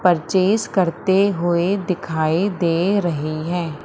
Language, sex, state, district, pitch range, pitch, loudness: Hindi, female, Madhya Pradesh, Umaria, 165-190 Hz, 175 Hz, -19 LUFS